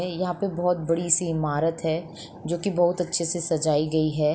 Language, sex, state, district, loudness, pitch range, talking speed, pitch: Hindi, female, Bihar, Sitamarhi, -24 LUFS, 160-175 Hz, 205 wpm, 170 Hz